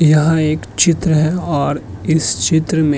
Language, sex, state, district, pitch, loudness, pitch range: Hindi, male, Uttar Pradesh, Hamirpur, 155 Hz, -15 LUFS, 145-160 Hz